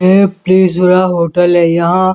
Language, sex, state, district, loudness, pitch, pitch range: Hindi, female, Uttar Pradesh, Muzaffarnagar, -10 LUFS, 180 Hz, 175-185 Hz